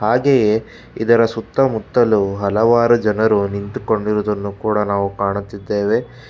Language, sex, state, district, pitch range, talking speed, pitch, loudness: Kannada, male, Karnataka, Bangalore, 100-115 Hz, 95 wpm, 110 Hz, -17 LUFS